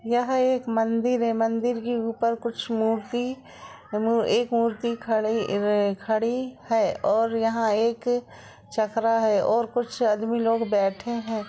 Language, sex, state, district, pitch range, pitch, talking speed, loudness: Hindi, female, Uttar Pradesh, Jalaun, 225-240 Hz, 230 Hz, 140 wpm, -25 LUFS